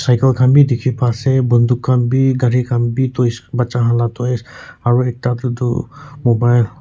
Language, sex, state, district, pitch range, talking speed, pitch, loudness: Nagamese, male, Nagaland, Kohima, 120-130 Hz, 185 wpm, 125 Hz, -15 LUFS